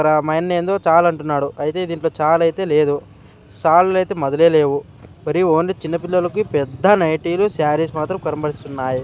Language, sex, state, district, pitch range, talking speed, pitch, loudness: Telugu, male, Andhra Pradesh, Sri Satya Sai, 150-175 Hz, 135 wpm, 160 Hz, -18 LUFS